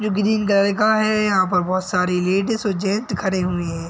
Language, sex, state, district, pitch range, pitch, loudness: Hindi, male, Chhattisgarh, Bilaspur, 180-210 Hz, 195 Hz, -19 LUFS